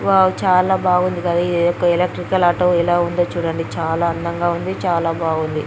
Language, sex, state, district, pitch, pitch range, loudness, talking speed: Telugu, male, Andhra Pradesh, Guntur, 175 Hz, 170-180 Hz, -18 LUFS, 160 wpm